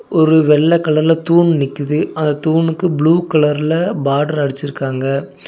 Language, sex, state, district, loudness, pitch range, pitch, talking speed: Tamil, male, Tamil Nadu, Nilgiris, -15 LUFS, 145-165 Hz, 155 Hz, 120 wpm